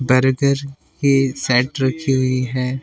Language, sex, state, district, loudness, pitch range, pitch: Hindi, male, Delhi, New Delhi, -18 LUFS, 130-140 Hz, 130 Hz